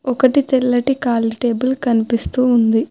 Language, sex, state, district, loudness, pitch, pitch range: Telugu, female, Telangana, Hyderabad, -16 LUFS, 245 Hz, 235-260 Hz